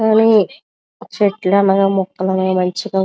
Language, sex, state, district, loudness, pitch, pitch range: Telugu, female, Andhra Pradesh, Visakhapatnam, -15 LUFS, 195 Hz, 190-215 Hz